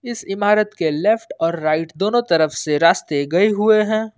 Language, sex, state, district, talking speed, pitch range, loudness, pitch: Hindi, male, Jharkhand, Ranchi, 185 wpm, 155-215 Hz, -18 LUFS, 195 Hz